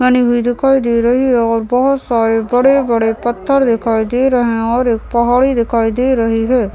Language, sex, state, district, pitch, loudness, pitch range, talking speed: Hindi, male, Chhattisgarh, Raigarh, 240 Hz, -13 LUFS, 230-255 Hz, 195 wpm